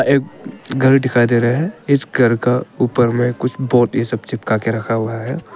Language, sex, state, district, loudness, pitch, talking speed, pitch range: Hindi, male, Arunachal Pradesh, Papum Pare, -17 LUFS, 125 Hz, 215 wpm, 115-130 Hz